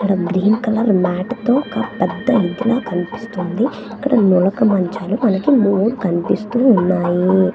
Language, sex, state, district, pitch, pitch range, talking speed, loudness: Telugu, female, Andhra Pradesh, Manyam, 205 Hz, 185-235 Hz, 120 wpm, -17 LUFS